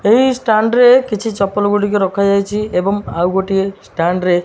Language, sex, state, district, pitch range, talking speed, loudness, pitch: Odia, male, Odisha, Malkangiri, 190-215 Hz, 190 wpm, -14 LUFS, 200 Hz